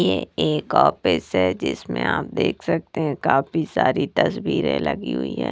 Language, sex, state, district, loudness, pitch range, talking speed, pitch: Hindi, female, Punjab, Kapurthala, -22 LUFS, 65-80 Hz, 165 wpm, 75 Hz